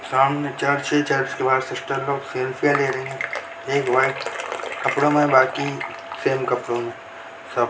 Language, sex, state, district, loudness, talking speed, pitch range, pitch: Hindi, male, Chhattisgarh, Sarguja, -22 LUFS, 170 wpm, 130-140 Hz, 135 Hz